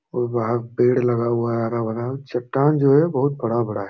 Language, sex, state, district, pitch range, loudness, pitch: Hindi, male, Jharkhand, Jamtara, 115-135 Hz, -21 LUFS, 120 Hz